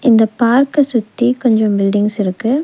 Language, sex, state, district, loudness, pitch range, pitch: Tamil, female, Tamil Nadu, Nilgiris, -14 LUFS, 210-255 Hz, 230 Hz